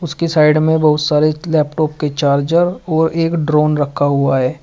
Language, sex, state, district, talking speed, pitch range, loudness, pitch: Hindi, male, Uttar Pradesh, Shamli, 180 wpm, 145-160 Hz, -15 LUFS, 155 Hz